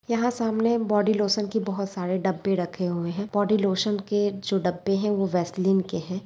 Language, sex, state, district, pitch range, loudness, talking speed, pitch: Hindi, female, Chhattisgarh, Bilaspur, 185-210 Hz, -25 LUFS, 190 wpm, 195 Hz